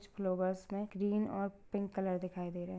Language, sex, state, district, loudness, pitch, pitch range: Hindi, female, Maharashtra, Sindhudurg, -38 LUFS, 195 Hz, 185-205 Hz